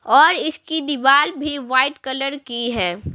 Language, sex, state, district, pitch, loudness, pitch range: Hindi, female, Bihar, Patna, 275 Hz, -18 LUFS, 260-295 Hz